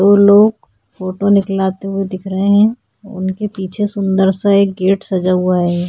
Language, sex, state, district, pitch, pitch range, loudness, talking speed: Hindi, female, Uttarakhand, Tehri Garhwal, 195 Hz, 185-200 Hz, -14 LUFS, 175 wpm